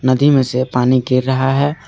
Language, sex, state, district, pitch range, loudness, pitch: Hindi, male, Jharkhand, Garhwa, 130-135 Hz, -15 LUFS, 130 Hz